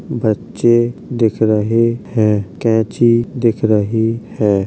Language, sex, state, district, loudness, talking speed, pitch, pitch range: Hindi, male, Uttar Pradesh, Jalaun, -15 LUFS, 105 wpm, 115 Hz, 110-120 Hz